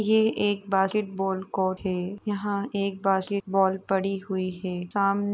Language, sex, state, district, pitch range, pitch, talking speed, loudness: Hindi, female, Uttar Pradesh, Etah, 190-200 Hz, 195 Hz, 145 wpm, -27 LUFS